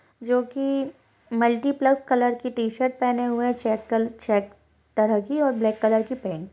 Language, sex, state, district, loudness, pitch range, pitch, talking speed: Hindi, female, Uttar Pradesh, Budaun, -24 LUFS, 220-255 Hz, 240 Hz, 175 wpm